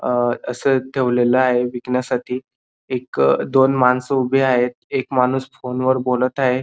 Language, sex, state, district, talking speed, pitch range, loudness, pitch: Marathi, male, Maharashtra, Dhule, 145 wpm, 125-130 Hz, -19 LUFS, 125 Hz